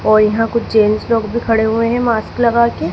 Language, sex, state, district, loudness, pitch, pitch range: Hindi, female, Madhya Pradesh, Dhar, -14 LUFS, 225 Hz, 215-235 Hz